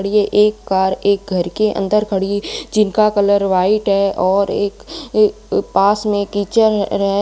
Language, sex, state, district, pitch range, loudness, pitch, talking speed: Hindi, female, Rajasthan, Bikaner, 195-210 Hz, -16 LUFS, 200 Hz, 160 wpm